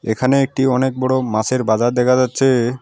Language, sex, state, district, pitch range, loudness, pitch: Bengali, male, West Bengal, Alipurduar, 120-130 Hz, -16 LUFS, 130 Hz